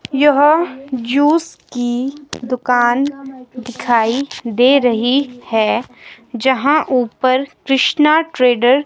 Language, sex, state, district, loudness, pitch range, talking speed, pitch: Hindi, female, Himachal Pradesh, Shimla, -15 LUFS, 245-280 Hz, 80 wpm, 260 Hz